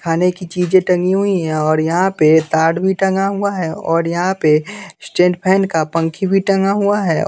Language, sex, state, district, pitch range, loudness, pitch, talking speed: Hindi, male, Bihar, West Champaran, 165-195 Hz, -15 LUFS, 180 Hz, 225 wpm